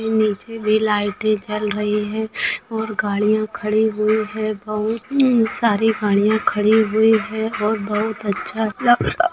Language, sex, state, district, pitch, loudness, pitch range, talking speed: Hindi, female, Bihar, Araria, 215 Hz, -19 LUFS, 210-220 Hz, 150 wpm